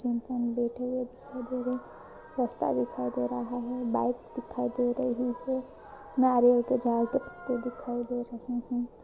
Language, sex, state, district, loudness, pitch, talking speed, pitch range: Hindi, female, Maharashtra, Sindhudurg, -30 LUFS, 245 Hz, 160 wpm, 240-250 Hz